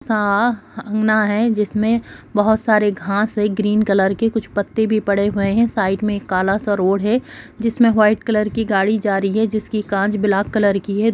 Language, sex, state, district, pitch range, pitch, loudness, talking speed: Hindi, female, Bihar, Jamui, 200-220 Hz, 210 Hz, -18 LUFS, 205 wpm